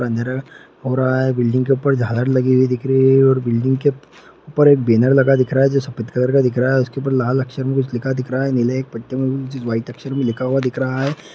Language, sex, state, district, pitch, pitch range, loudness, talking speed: Hindi, male, Bihar, Lakhisarai, 130 Hz, 125-135 Hz, -17 LUFS, 260 wpm